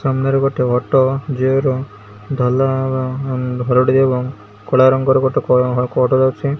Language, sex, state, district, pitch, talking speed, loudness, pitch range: Odia, male, Odisha, Malkangiri, 130 Hz, 65 wpm, -16 LUFS, 125-135 Hz